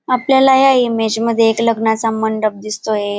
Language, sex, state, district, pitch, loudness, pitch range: Marathi, female, Maharashtra, Dhule, 225 Hz, -14 LUFS, 220-245 Hz